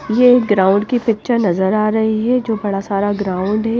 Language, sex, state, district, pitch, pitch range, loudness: Hindi, female, Himachal Pradesh, Shimla, 215 Hz, 200-235 Hz, -16 LUFS